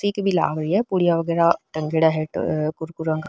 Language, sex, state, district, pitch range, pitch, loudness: Rajasthani, female, Rajasthan, Nagaur, 155-180 Hz, 165 Hz, -21 LUFS